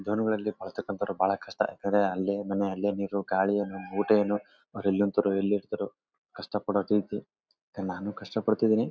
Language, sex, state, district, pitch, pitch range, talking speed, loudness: Kannada, male, Karnataka, Bellary, 100 Hz, 100-105 Hz, 140 wpm, -29 LUFS